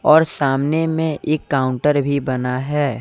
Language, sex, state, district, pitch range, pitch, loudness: Hindi, male, Jharkhand, Deoghar, 135-155 Hz, 140 Hz, -18 LUFS